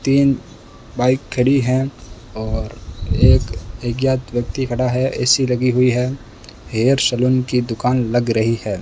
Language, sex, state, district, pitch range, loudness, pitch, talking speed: Hindi, male, Rajasthan, Bikaner, 115-130 Hz, -18 LUFS, 125 Hz, 145 wpm